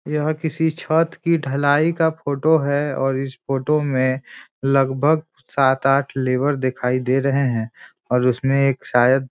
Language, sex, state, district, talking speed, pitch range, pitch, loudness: Hindi, male, Bihar, Muzaffarpur, 160 wpm, 130-150 Hz, 135 Hz, -20 LUFS